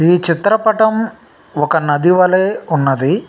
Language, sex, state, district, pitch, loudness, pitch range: Telugu, male, Telangana, Nalgonda, 180 Hz, -14 LUFS, 155-210 Hz